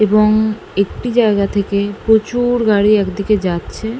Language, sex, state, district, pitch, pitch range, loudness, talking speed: Bengali, female, West Bengal, North 24 Parganas, 215 Hz, 200-220 Hz, -15 LUFS, 135 wpm